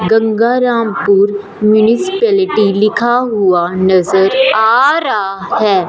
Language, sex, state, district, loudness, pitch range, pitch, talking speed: Hindi, female, Punjab, Fazilka, -11 LUFS, 195-240 Hz, 215 Hz, 80 wpm